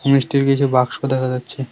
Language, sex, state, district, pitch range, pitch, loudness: Bengali, male, West Bengal, Cooch Behar, 125-140 Hz, 135 Hz, -18 LUFS